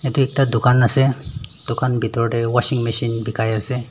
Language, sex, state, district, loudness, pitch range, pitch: Nagamese, male, Nagaland, Dimapur, -18 LUFS, 115-130 Hz, 120 Hz